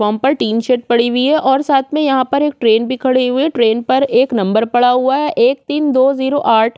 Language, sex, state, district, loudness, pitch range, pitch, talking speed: Hindi, female, Chhattisgarh, Korba, -14 LUFS, 235-280 Hz, 260 Hz, 265 wpm